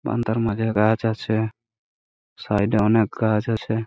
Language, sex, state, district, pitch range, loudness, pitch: Bengali, male, West Bengal, Purulia, 110-115 Hz, -22 LUFS, 110 Hz